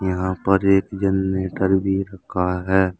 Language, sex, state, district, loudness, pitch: Hindi, male, Uttar Pradesh, Saharanpur, -20 LUFS, 95 Hz